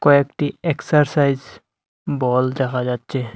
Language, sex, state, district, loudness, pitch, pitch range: Bengali, male, Assam, Hailakandi, -20 LUFS, 135 Hz, 125-145 Hz